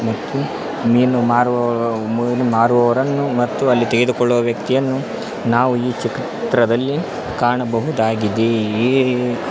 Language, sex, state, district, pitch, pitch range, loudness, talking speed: Kannada, male, Karnataka, Koppal, 120 Hz, 115-125 Hz, -17 LUFS, 95 wpm